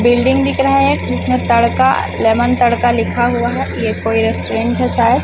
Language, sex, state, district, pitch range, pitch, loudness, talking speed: Hindi, female, Chhattisgarh, Raipur, 225-250 Hz, 240 Hz, -14 LUFS, 195 wpm